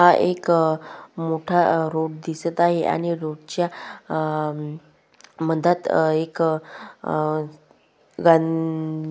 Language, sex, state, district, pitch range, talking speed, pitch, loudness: Marathi, female, Maharashtra, Solapur, 155-170 Hz, 100 wpm, 160 Hz, -22 LUFS